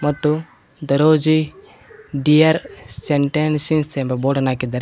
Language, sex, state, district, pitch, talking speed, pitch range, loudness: Kannada, male, Karnataka, Koppal, 150 Hz, 100 wpm, 140-155 Hz, -18 LUFS